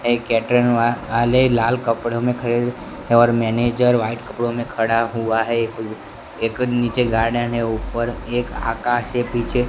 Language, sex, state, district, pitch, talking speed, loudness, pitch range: Hindi, male, Gujarat, Gandhinagar, 120 Hz, 155 wpm, -19 LUFS, 115-120 Hz